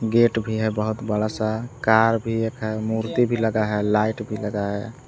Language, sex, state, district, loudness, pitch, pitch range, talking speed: Hindi, male, Jharkhand, Palamu, -22 LUFS, 110 Hz, 110-115 Hz, 210 wpm